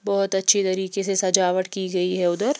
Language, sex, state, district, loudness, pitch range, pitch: Hindi, female, Bihar, West Champaran, -21 LUFS, 185-195 Hz, 190 Hz